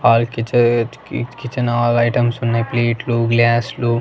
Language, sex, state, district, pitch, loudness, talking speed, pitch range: Telugu, male, Andhra Pradesh, Annamaya, 120 Hz, -17 LUFS, 120 wpm, 115-120 Hz